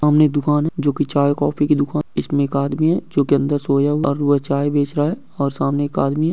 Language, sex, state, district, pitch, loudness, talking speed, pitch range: Hindi, male, Maharashtra, Aurangabad, 145 Hz, -18 LUFS, 295 wpm, 140-150 Hz